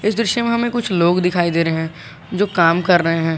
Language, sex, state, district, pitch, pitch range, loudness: Hindi, male, Jharkhand, Garhwa, 175 Hz, 165-210 Hz, -17 LUFS